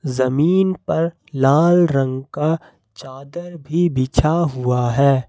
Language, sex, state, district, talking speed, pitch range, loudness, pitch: Hindi, male, Jharkhand, Ranchi, 115 wpm, 130-170 Hz, -18 LUFS, 145 Hz